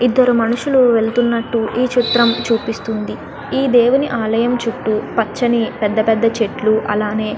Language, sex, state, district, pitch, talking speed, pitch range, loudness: Telugu, female, Andhra Pradesh, Guntur, 230 Hz, 130 wpm, 220-245 Hz, -16 LUFS